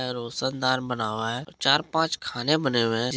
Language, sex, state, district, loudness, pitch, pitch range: Hindi, male, Bihar, Gopalganj, -25 LUFS, 130 Hz, 120-135 Hz